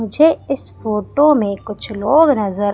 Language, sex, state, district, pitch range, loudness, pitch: Hindi, female, Madhya Pradesh, Umaria, 205-290 Hz, -16 LUFS, 225 Hz